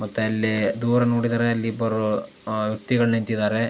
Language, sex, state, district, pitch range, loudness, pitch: Kannada, male, Karnataka, Belgaum, 110-120 Hz, -23 LUFS, 115 Hz